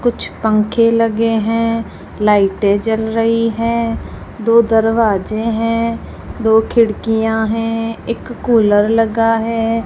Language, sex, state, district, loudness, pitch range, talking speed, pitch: Hindi, female, Rajasthan, Jaisalmer, -15 LUFS, 220-230 Hz, 110 wpm, 225 Hz